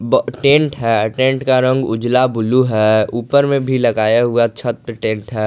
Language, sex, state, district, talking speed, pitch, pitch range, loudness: Hindi, male, Jharkhand, Garhwa, 195 wpm, 120 Hz, 110-130 Hz, -15 LUFS